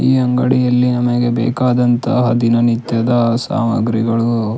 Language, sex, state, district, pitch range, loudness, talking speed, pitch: Kannada, male, Karnataka, Shimoga, 115-125 Hz, -15 LUFS, 90 wpm, 120 Hz